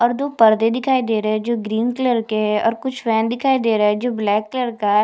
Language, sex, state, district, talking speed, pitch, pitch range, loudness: Hindi, female, Chhattisgarh, Jashpur, 285 wpm, 230 Hz, 215-245 Hz, -18 LUFS